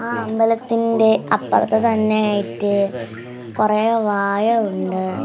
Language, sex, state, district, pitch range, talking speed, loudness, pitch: Malayalam, female, Kerala, Kasaragod, 200-225 Hz, 90 wpm, -18 LUFS, 215 Hz